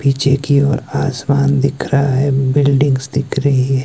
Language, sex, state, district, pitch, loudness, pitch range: Hindi, male, Himachal Pradesh, Shimla, 140 Hz, -15 LUFS, 135-140 Hz